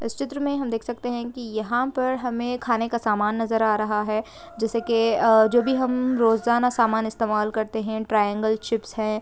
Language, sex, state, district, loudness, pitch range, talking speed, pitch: Hindi, female, Uttar Pradesh, Jyotiba Phule Nagar, -23 LUFS, 220-245 Hz, 210 wpm, 225 Hz